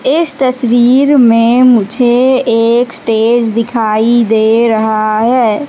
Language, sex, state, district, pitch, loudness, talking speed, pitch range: Hindi, female, Madhya Pradesh, Katni, 235 Hz, -10 LUFS, 105 wpm, 225-250 Hz